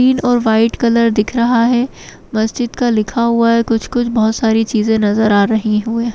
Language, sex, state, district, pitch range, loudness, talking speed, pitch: Kumaoni, female, Uttarakhand, Tehri Garhwal, 220-240 Hz, -14 LUFS, 215 wpm, 230 Hz